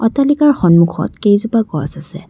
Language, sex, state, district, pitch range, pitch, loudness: Assamese, female, Assam, Kamrup Metropolitan, 170-225 Hz, 205 Hz, -13 LUFS